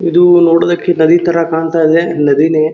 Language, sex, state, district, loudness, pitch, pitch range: Kannada, male, Karnataka, Dharwad, -10 LUFS, 165 Hz, 160-170 Hz